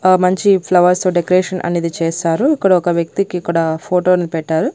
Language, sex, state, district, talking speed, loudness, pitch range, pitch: Telugu, female, Andhra Pradesh, Annamaya, 165 wpm, -15 LUFS, 170-185 Hz, 180 Hz